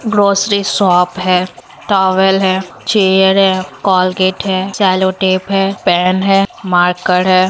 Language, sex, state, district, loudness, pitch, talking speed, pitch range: Hindi, female, Bihar, Supaul, -12 LUFS, 190 Hz, 130 wpm, 185-195 Hz